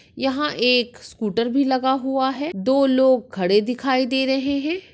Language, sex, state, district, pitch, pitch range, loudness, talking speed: Hindi, female, Maharashtra, Sindhudurg, 265 Hz, 245-270 Hz, -20 LUFS, 170 wpm